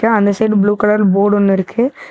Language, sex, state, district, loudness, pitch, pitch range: Tamil, female, Tamil Nadu, Namakkal, -13 LUFS, 210 Hz, 200-220 Hz